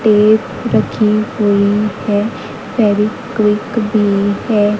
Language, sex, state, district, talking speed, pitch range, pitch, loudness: Hindi, female, Haryana, Jhajjar, 85 wpm, 205-215 Hz, 210 Hz, -14 LUFS